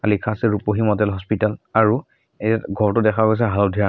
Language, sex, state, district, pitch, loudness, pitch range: Assamese, male, Assam, Sonitpur, 105 Hz, -20 LUFS, 105-110 Hz